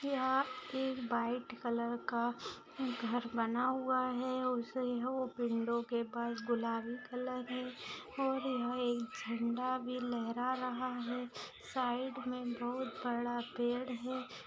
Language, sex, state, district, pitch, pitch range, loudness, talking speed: Hindi, female, Maharashtra, Aurangabad, 250 Hz, 240-255 Hz, -38 LUFS, 130 wpm